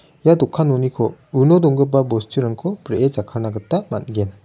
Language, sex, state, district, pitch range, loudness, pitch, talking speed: Garo, male, Meghalaya, West Garo Hills, 115-155 Hz, -18 LUFS, 135 Hz, 120 wpm